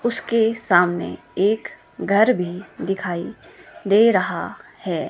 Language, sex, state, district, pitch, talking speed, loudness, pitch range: Hindi, female, Himachal Pradesh, Shimla, 195 Hz, 105 wpm, -20 LUFS, 180-225 Hz